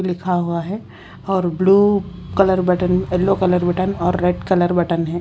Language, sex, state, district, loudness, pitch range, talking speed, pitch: Hindi, female, Haryana, Charkhi Dadri, -18 LUFS, 175-190 Hz, 170 wpm, 180 Hz